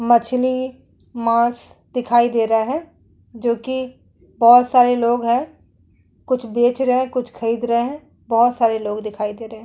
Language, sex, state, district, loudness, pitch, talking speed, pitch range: Hindi, female, Uttar Pradesh, Muzaffarnagar, -18 LUFS, 240 Hz, 155 wpm, 230-255 Hz